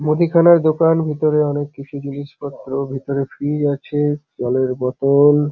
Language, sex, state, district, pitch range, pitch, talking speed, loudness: Bengali, male, West Bengal, Paschim Medinipur, 140-150 Hz, 145 Hz, 120 wpm, -17 LUFS